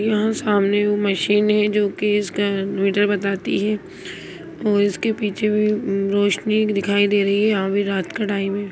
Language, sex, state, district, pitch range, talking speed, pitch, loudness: Hindi, female, Bihar, Lakhisarai, 200-210 Hz, 170 wpm, 205 Hz, -20 LUFS